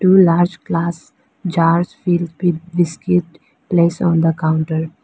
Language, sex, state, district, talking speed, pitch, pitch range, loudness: English, female, Arunachal Pradesh, Lower Dibang Valley, 130 wpm, 170 Hz, 165-175 Hz, -17 LUFS